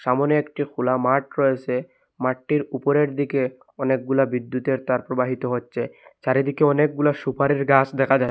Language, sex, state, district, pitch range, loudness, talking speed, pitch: Bengali, male, Assam, Hailakandi, 130-145 Hz, -22 LUFS, 135 wpm, 135 Hz